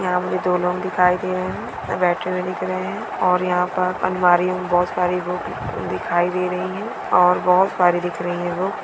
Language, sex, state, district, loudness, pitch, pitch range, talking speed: Hindi, female, Bihar, Araria, -20 LUFS, 180 Hz, 180-185 Hz, 225 wpm